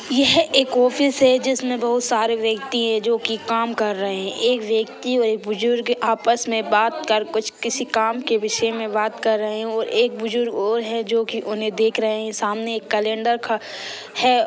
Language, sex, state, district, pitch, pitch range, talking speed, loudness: Hindi, female, Bihar, Gopalganj, 225 Hz, 220-240 Hz, 210 wpm, -20 LUFS